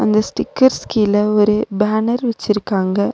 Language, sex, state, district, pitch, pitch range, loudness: Tamil, female, Tamil Nadu, Nilgiris, 210 Hz, 210-220 Hz, -16 LUFS